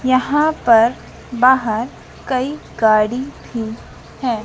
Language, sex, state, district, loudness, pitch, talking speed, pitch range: Hindi, female, Madhya Pradesh, Dhar, -17 LUFS, 245 Hz, 95 wpm, 225-260 Hz